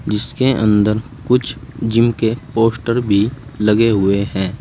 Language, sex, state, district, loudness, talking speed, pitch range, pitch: Hindi, male, Uttar Pradesh, Saharanpur, -16 LUFS, 130 wpm, 105-125 Hz, 115 Hz